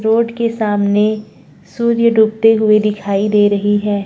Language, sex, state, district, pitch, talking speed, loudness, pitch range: Hindi, female, Uttarakhand, Tehri Garhwal, 215 Hz, 145 wpm, -14 LUFS, 205-225 Hz